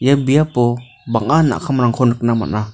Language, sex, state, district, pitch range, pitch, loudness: Garo, male, Meghalaya, North Garo Hills, 115-140 Hz, 125 Hz, -16 LUFS